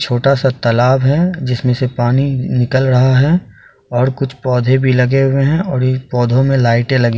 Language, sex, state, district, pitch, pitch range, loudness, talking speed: Hindi, male, Bihar, Purnia, 130 Hz, 125-135 Hz, -14 LUFS, 190 wpm